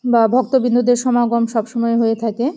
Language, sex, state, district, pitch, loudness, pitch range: Bengali, female, West Bengal, Jalpaiguri, 240 Hz, -16 LUFS, 230-250 Hz